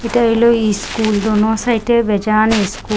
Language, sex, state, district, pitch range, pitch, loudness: Bengali, female, Assam, Hailakandi, 215-235 Hz, 220 Hz, -14 LUFS